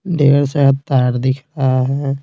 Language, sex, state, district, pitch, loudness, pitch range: Hindi, male, Bihar, Patna, 135 Hz, -15 LUFS, 130-145 Hz